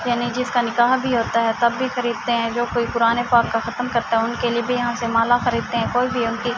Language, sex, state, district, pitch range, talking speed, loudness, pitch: Urdu, female, Andhra Pradesh, Anantapur, 235-245 Hz, 230 wpm, -20 LUFS, 240 Hz